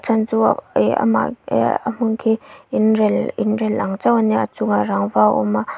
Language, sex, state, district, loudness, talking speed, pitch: Mizo, female, Mizoram, Aizawl, -18 LUFS, 165 wpm, 215 Hz